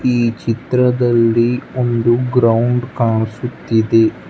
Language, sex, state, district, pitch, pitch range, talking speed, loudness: Kannada, male, Karnataka, Bangalore, 120 Hz, 115-125 Hz, 70 wpm, -15 LUFS